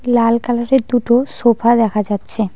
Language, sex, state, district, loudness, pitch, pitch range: Bengali, female, West Bengal, Cooch Behar, -15 LUFS, 235 Hz, 225-245 Hz